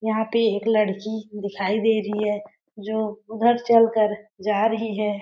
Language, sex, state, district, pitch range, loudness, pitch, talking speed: Hindi, female, Chhattisgarh, Balrampur, 210-220 Hz, -23 LUFS, 215 Hz, 170 wpm